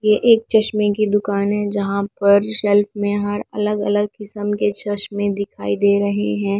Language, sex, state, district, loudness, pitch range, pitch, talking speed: Hindi, female, Punjab, Pathankot, -18 LUFS, 200-210 Hz, 205 Hz, 180 wpm